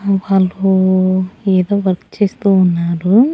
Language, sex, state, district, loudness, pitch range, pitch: Telugu, female, Andhra Pradesh, Annamaya, -14 LUFS, 185-200 Hz, 190 Hz